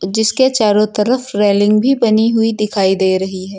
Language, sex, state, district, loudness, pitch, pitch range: Hindi, female, Uttar Pradesh, Lucknow, -14 LUFS, 210 Hz, 195-225 Hz